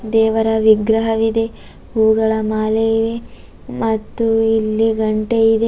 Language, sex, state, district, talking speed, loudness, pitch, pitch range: Kannada, female, Karnataka, Bidar, 95 wpm, -16 LUFS, 225 Hz, 220-225 Hz